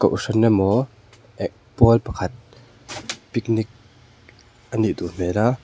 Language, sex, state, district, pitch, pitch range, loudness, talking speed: Mizo, male, Mizoram, Aizawl, 115 Hz, 110-120 Hz, -21 LUFS, 105 wpm